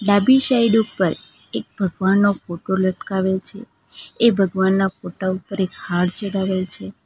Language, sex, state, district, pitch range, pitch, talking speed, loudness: Gujarati, female, Gujarat, Valsad, 185-200 Hz, 190 Hz, 135 wpm, -20 LUFS